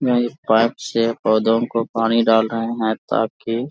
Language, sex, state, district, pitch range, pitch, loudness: Hindi, male, Jharkhand, Sahebganj, 110-115 Hz, 115 Hz, -19 LUFS